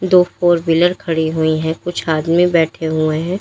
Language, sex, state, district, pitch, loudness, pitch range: Hindi, female, Uttar Pradesh, Lalitpur, 165 Hz, -16 LUFS, 160-175 Hz